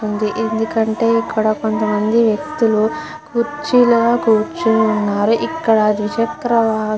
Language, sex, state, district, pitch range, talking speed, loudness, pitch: Telugu, female, Andhra Pradesh, Guntur, 215-235 Hz, 95 wpm, -16 LUFS, 225 Hz